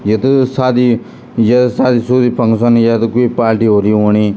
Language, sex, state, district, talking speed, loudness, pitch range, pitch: Garhwali, male, Uttarakhand, Tehri Garhwal, 150 wpm, -12 LUFS, 110-125 Hz, 120 Hz